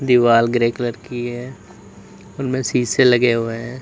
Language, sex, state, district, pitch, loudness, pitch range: Hindi, male, Uttar Pradesh, Lalitpur, 120 Hz, -18 LUFS, 120-125 Hz